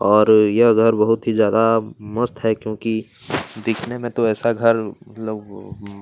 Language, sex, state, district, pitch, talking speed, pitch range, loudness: Hindi, male, Chhattisgarh, Kabirdham, 110 Hz, 160 wpm, 110-115 Hz, -18 LUFS